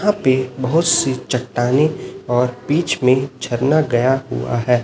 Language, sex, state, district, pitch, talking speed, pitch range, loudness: Hindi, male, Chhattisgarh, Raipur, 130 Hz, 150 wpm, 125-145 Hz, -17 LUFS